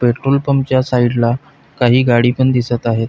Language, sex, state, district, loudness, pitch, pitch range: Marathi, male, Maharashtra, Pune, -14 LUFS, 125 Hz, 120-130 Hz